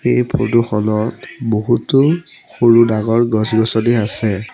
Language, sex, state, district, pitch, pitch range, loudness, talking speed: Assamese, male, Assam, Sonitpur, 115 Hz, 110-120 Hz, -15 LUFS, 120 wpm